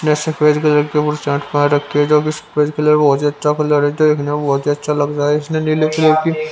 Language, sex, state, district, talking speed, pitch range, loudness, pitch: Hindi, male, Haryana, Rohtak, 275 wpm, 145-155 Hz, -15 LUFS, 150 Hz